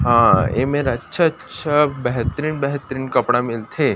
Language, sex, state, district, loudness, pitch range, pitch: Chhattisgarhi, male, Chhattisgarh, Rajnandgaon, -19 LUFS, 120-150 Hz, 135 Hz